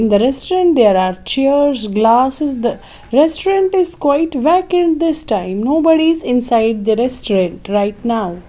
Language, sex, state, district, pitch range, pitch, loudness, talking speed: English, female, Maharashtra, Mumbai Suburban, 220-320 Hz, 255 Hz, -14 LUFS, 150 wpm